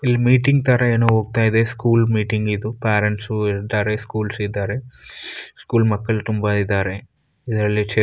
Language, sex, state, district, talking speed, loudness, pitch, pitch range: Kannada, male, Karnataka, Raichur, 135 wpm, -19 LUFS, 110 Hz, 105-115 Hz